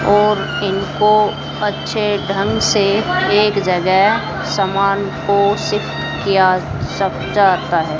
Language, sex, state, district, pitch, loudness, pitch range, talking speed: Hindi, female, Haryana, Charkhi Dadri, 200 Hz, -16 LUFS, 190-205 Hz, 105 wpm